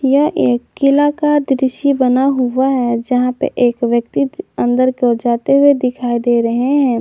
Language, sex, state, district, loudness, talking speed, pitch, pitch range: Hindi, female, Jharkhand, Garhwa, -14 LUFS, 180 wpm, 255 Hz, 240-275 Hz